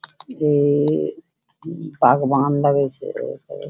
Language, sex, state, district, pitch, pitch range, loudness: Angika, female, Bihar, Bhagalpur, 145 Hz, 140-165 Hz, -19 LUFS